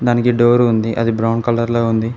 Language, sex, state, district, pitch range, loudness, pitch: Telugu, male, Telangana, Mahabubabad, 115-120 Hz, -15 LUFS, 115 Hz